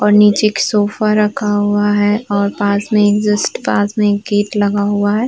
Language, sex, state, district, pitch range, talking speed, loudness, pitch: Hindi, female, Uttar Pradesh, Varanasi, 205-210 Hz, 205 wpm, -14 LUFS, 205 Hz